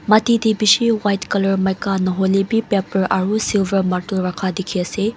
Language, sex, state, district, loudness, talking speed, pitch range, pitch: Nagamese, female, Mizoram, Aizawl, -18 LUFS, 160 wpm, 190-215 Hz, 195 Hz